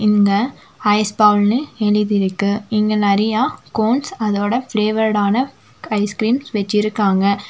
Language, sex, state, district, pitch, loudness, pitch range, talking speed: Tamil, female, Tamil Nadu, Nilgiris, 210 Hz, -17 LUFS, 205-220 Hz, 90 wpm